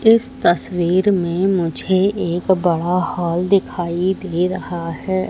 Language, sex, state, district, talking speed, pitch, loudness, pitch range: Hindi, female, Madhya Pradesh, Katni, 125 wpm, 180 Hz, -18 LUFS, 175-190 Hz